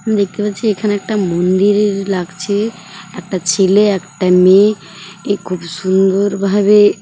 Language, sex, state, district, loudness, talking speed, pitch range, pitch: Bengali, male, West Bengal, Paschim Medinipur, -14 LUFS, 110 wpm, 185-205 Hz, 195 Hz